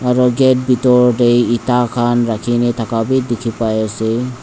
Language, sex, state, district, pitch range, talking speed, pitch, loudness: Nagamese, male, Nagaland, Dimapur, 115-125 Hz, 160 wpm, 120 Hz, -14 LUFS